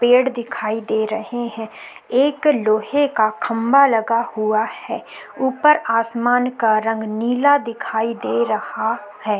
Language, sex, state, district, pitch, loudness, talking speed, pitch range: Hindi, female, Uttarakhand, Tehri Garhwal, 230 Hz, -19 LUFS, 135 wpm, 220-250 Hz